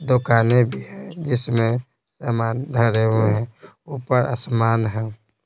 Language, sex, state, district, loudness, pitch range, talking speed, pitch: Hindi, male, Bihar, Patna, -20 LUFS, 110-125 Hz, 100 wpm, 115 Hz